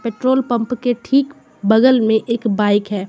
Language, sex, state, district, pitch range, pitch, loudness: Hindi, female, Jharkhand, Garhwa, 210-255 Hz, 230 Hz, -16 LUFS